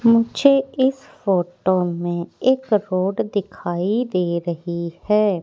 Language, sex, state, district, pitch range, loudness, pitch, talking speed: Hindi, female, Madhya Pradesh, Katni, 175-230 Hz, -20 LUFS, 190 Hz, 110 wpm